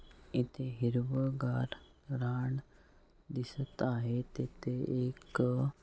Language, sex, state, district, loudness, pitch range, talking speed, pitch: Marathi, male, Maharashtra, Sindhudurg, -36 LUFS, 125-135 Hz, 80 wpm, 125 Hz